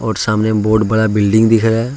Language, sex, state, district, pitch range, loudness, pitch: Hindi, male, Jharkhand, Ranchi, 110-115 Hz, -13 LUFS, 110 Hz